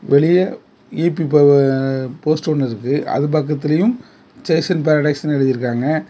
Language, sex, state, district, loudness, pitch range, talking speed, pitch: Tamil, male, Tamil Nadu, Kanyakumari, -17 LUFS, 140-160 Hz, 120 wpm, 150 Hz